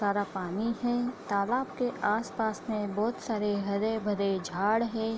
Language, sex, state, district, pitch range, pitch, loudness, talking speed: Hindi, female, Bihar, Bhagalpur, 200-230 Hz, 215 Hz, -30 LUFS, 140 wpm